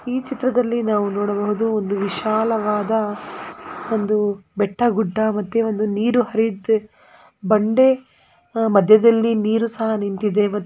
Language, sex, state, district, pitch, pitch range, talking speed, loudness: Kannada, female, Karnataka, Gulbarga, 220 Hz, 210-230 Hz, 105 wpm, -19 LUFS